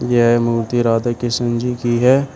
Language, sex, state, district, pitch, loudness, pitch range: Hindi, male, Uttar Pradesh, Shamli, 120 Hz, -17 LUFS, 120-125 Hz